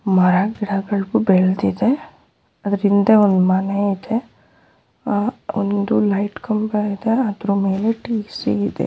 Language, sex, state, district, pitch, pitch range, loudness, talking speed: Kannada, female, Karnataka, Bellary, 205 Hz, 195-220 Hz, -19 LUFS, 110 wpm